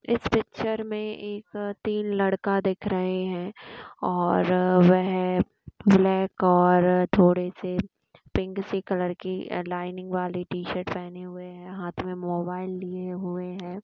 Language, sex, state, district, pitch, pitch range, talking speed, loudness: Hindi, female, Uttar Pradesh, Jyotiba Phule Nagar, 185 Hz, 180-195 Hz, 145 wpm, -26 LUFS